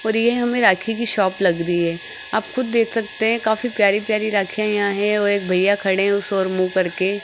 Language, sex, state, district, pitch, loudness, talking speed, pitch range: Hindi, female, Rajasthan, Jaipur, 205 Hz, -19 LUFS, 240 wpm, 190-220 Hz